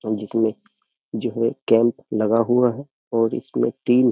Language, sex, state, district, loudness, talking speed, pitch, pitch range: Hindi, male, Uttar Pradesh, Jyotiba Phule Nagar, -21 LUFS, 190 wpm, 115 Hz, 115-125 Hz